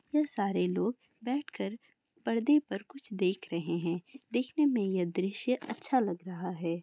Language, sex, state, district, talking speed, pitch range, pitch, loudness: Hindi, female, Bihar, Bhagalpur, 165 wpm, 185-265 Hz, 220 Hz, -33 LUFS